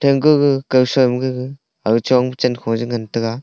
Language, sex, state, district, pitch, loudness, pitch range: Wancho, male, Arunachal Pradesh, Longding, 125 Hz, -17 LUFS, 120-135 Hz